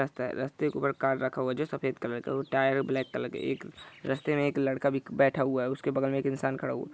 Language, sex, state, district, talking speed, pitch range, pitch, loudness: Hindi, male, Bihar, Saran, 285 wpm, 130-135 Hz, 135 Hz, -30 LUFS